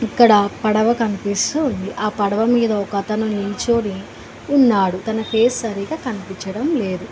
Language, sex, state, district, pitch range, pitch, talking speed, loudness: Telugu, female, Telangana, Mahabubabad, 200-235 Hz, 215 Hz, 125 wpm, -18 LUFS